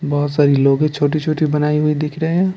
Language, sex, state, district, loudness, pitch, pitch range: Hindi, male, Bihar, Patna, -16 LUFS, 150 Hz, 145-155 Hz